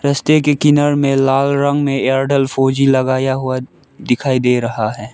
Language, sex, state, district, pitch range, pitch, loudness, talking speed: Hindi, male, Arunachal Pradesh, Lower Dibang Valley, 130-140 Hz, 135 Hz, -15 LUFS, 185 wpm